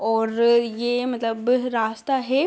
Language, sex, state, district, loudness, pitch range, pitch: Hindi, female, Bihar, Muzaffarpur, -22 LUFS, 225-250 Hz, 235 Hz